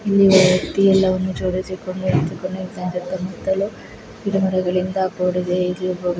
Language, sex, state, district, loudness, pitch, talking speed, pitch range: Kannada, female, Karnataka, Raichur, -20 LUFS, 185 Hz, 95 wpm, 180-190 Hz